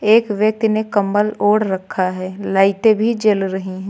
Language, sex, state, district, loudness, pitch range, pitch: Hindi, female, Uttar Pradesh, Lucknow, -17 LUFS, 190-215 Hz, 205 Hz